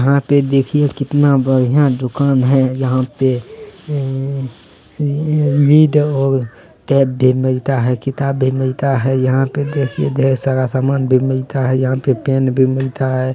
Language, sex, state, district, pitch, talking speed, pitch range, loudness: Hindi, male, Bihar, Kishanganj, 135 Hz, 140 wpm, 130-140 Hz, -15 LUFS